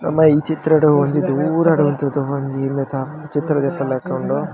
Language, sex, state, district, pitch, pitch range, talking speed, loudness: Tulu, male, Karnataka, Dakshina Kannada, 145 Hz, 140-155 Hz, 170 wpm, -18 LUFS